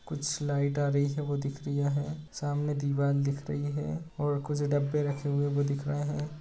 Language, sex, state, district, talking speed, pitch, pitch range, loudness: Hindi, male, Bihar, Bhagalpur, 205 wpm, 145 Hz, 140-145 Hz, -31 LUFS